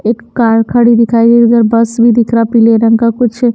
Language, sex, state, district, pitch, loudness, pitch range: Hindi, female, Himachal Pradesh, Shimla, 230 Hz, -9 LUFS, 230-235 Hz